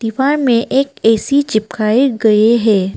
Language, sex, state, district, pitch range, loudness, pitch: Hindi, female, Arunachal Pradesh, Papum Pare, 215-265 Hz, -13 LUFS, 230 Hz